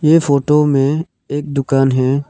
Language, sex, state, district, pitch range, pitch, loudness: Hindi, male, Arunachal Pradesh, Lower Dibang Valley, 135-150 Hz, 140 Hz, -15 LUFS